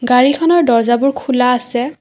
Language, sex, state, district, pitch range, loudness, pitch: Assamese, female, Assam, Kamrup Metropolitan, 245-275 Hz, -13 LUFS, 250 Hz